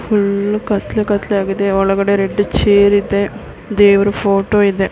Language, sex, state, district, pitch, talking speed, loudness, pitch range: Kannada, female, Karnataka, Mysore, 200 Hz, 135 wpm, -14 LUFS, 200-205 Hz